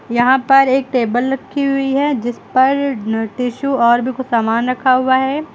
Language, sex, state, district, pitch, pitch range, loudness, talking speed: Hindi, female, Uttar Pradesh, Lucknow, 260 Hz, 240-270 Hz, -15 LUFS, 185 wpm